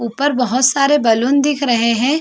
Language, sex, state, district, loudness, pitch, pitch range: Hindi, female, Chhattisgarh, Sarguja, -14 LUFS, 260 Hz, 235-285 Hz